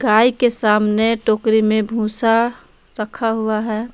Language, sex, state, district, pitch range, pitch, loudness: Hindi, female, Jharkhand, Palamu, 215-230 Hz, 220 Hz, -16 LUFS